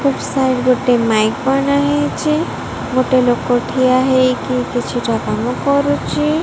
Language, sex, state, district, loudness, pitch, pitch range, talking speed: Odia, female, Odisha, Malkangiri, -16 LUFS, 255 Hz, 250-280 Hz, 105 wpm